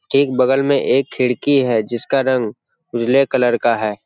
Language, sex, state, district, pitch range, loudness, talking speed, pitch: Hindi, male, Bihar, Jamui, 120-135 Hz, -17 LUFS, 175 wpm, 130 Hz